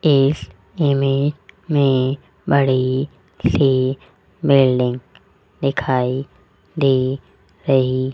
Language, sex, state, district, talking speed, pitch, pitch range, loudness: Hindi, male, Rajasthan, Jaipur, 75 wpm, 135 Hz, 130-140 Hz, -18 LUFS